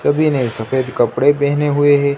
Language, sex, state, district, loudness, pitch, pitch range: Hindi, male, Gujarat, Gandhinagar, -15 LUFS, 140 Hz, 130-145 Hz